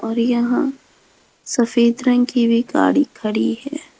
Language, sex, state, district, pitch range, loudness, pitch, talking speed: Hindi, female, Rajasthan, Jaipur, 230-275 Hz, -18 LUFS, 245 Hz, 135 wpm